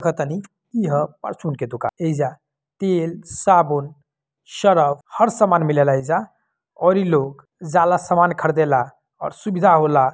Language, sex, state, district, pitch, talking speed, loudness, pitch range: Bhojpuri, male, Bihar, Gopalganj, 160 Hz, 155 wpm, -19 LUFS, 145-180 Hz